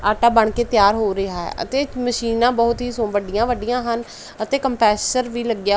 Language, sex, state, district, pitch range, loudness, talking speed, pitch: Punjabi, female, Punjab, Pathankot, 210-245 Hz, -19 LUFS, 185 wpm, 235 Hz